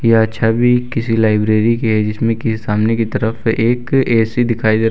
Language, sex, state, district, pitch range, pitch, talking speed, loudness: Hindi, male, Uttar Pradesh, Lucknow, 110-120 Hz, 115 Hz, 210 wpm, -15 LUFS